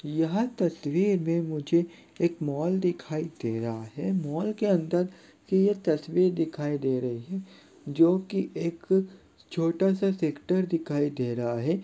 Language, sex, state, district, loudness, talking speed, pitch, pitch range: Hindi, male, Chhattisgarh, Sarguja, -28 LUFS, 145 wpm, 170 Hz, 150-190 Hz